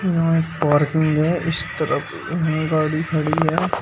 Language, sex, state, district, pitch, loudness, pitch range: Hindi, male, Uttar Pradesh, Shamli, 160 Hz, -20 LUFS, 155-165 Hz